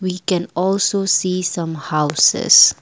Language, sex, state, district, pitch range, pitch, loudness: English, female, Assam, Kamrup Metropolitan, 165-185 Hz, 185 Hz, -16 LUFS